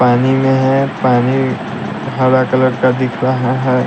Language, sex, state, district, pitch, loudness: Hindi, male, Bihar, West Champaran, 130 Hz, -14 LUFS